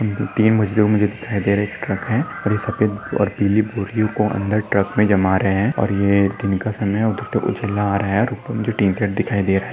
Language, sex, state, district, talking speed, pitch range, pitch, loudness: Hindi, male, Maharashtra, Dhule, 220 wpm, 100-110 Hz, 105 Hz, -19 LUFS